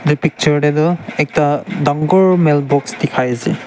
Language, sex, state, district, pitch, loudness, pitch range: Nagamese, male, Nagaland, Dimapur, 150 Hz, -15 LUFS, 145-170 Hz